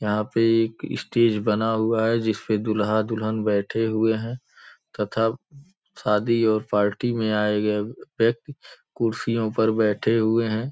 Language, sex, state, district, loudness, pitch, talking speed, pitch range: Hindi, male, Uttar Pradesh, Gorakhpur, -23 LUFS, 110 Hz, 150 wpm, 105-115 Hz